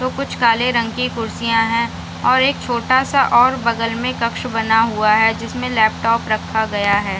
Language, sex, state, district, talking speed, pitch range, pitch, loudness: Hindi, female, Bihar, Samastipur, 190 wpm, 225-250 Hz, 230 Hz, -17 LUFS